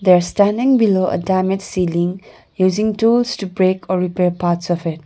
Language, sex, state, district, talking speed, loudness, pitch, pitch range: English, female, Sikkim, Gangtok, 190 wpm, -17 LUFS, 185 Hz, 180-205 Hz